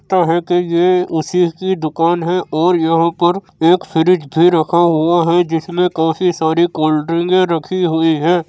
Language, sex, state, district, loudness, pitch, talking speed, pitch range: Hindi, male, Uttar Pradesh, Jyotiba Phule Nagar, -14 LUFS, 170 Hz, 170 wpm, 160-180 Hz